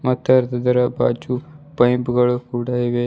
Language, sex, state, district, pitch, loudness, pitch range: Kannada, male, Karnataka, Bidar, 125 Hz, -19 LUFS, 120-125 Hz